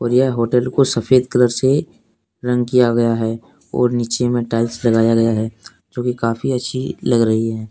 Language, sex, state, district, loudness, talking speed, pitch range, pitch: Hindi, male, Jharkhand, Deoghar, -17 LUFS, 195 wpm, 115-125 Hz, 120 Hz